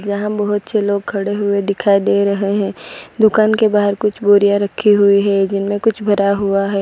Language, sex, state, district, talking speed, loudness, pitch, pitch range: Hindi, female, Gujarat, Valsad, 200 wpm, -15 LUFS, 200 Hz, 200-210 Hz